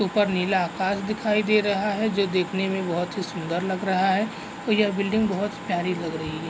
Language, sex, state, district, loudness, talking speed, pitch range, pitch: Hindi, male, Chhattisgarh, Raigarh, -24 LUFS, 220 wpm, 180-210 Hz, 190 Hz